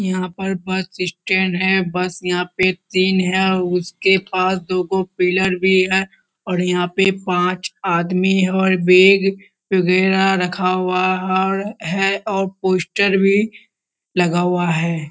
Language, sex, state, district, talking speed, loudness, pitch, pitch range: Hindi, male, Bihar, Kishanganj, 140 wpm, -17 LUFS, 185 Hz, 180-190 Hz